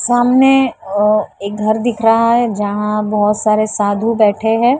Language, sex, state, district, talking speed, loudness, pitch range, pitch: Hindi, female, Maharashtra, Mumbai Suburban, 165 wpm, -14 LUFS, 210-235 Hz, 215 Hz